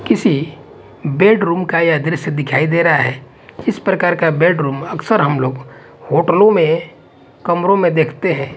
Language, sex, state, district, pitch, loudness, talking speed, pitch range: Hindi, male, Punjab, Pathankot, 165 Hz, -15 LUFS, 155 wpm, 145-175 Hz